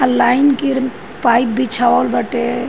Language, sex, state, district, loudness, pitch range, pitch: Bhojpuri, female, Uttar Pradesh, Ghazipur, -15 LUFS, 240-260 Hz, 250 Hz